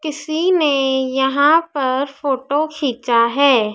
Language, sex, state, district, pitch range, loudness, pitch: Hindi, female, Madhya Pradesh, Dhar, 265-305 Hz, -17 LUFS, 280 Hz